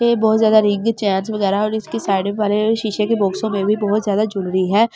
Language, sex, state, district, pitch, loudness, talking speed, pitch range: Hindi, female, Delhi, New Delhi, 210 Hz, -18 LUFS, 240 wpm, 200-220 Hz